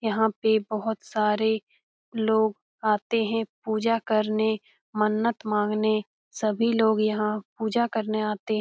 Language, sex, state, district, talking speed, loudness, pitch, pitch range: Hindi, female, Bihar, Jamui, 125 wpm, -26 LUFS, 220 Hz, 215-220 Hz